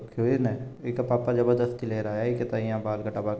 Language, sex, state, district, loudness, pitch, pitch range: Marwari, male, Rajasthan, Nagaur, -27 LUFS, 120 Hz, 110-120 Hz